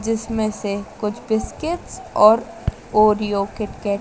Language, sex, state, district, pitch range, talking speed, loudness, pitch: Hindi, female, Madhya Pradesh, Dhar, 205-225 Hz, 120 wpm, -20 LUFS, 215 Hz